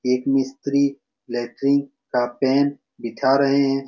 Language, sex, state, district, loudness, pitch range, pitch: Hindi, male, Bihar, Saran, -21 LUFS, 125-140 Hz, 135 Hz